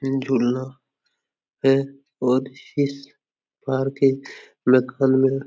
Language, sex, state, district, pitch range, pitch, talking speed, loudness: Hindi, male, Uttar Pradesh, Etah, 130-135 Hz, 135 Hz, 55 wpm, -22 LUFS